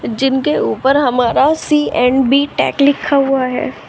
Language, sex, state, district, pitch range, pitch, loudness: Hindi, female, Uttar Pradesh, Shamli, 260-285 Hz, 275 Hz, -14 LUFS